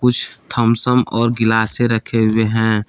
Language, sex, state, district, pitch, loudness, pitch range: Hindi, male, Jharkhand, Palamu, 115 Hz, -16 LUFS, 110-120 Hz